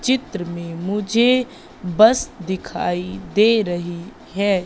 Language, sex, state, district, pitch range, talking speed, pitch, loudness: Hindi, female, Madhya Pradesh, Katni, 175-230 Hz, 105 wpm, 200 Hz, -19 LUFS